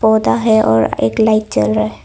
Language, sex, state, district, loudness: Hindi, female, Arunachal Pradesh, Longding, -14 LUFS